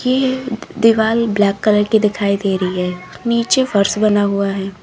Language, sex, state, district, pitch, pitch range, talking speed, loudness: Hindi, female, Uttar Pradesh, Lalitpur, 205 Hz, 200-230 Hz, 175 wpm, -16 LUFS